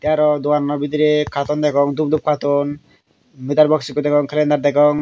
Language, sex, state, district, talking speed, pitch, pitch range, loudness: Chakma, male, Tripura, Dhalai, 190 wpm, 150 Hz, 145-150 Hz, -17 LUFS